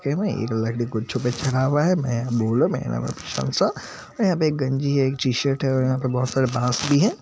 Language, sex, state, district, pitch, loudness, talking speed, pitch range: Hindi, male, Bihar, Madhepura, 130 Hz, -22 LUFS, 135 wpm, 120-140 Hz